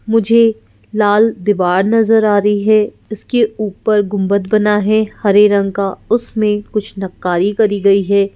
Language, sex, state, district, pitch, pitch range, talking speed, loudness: Hindi, female, Madhya Pradesh, Bhopal, 210 Hz, 200-220 Hz, 150 wpm, -14 LUFS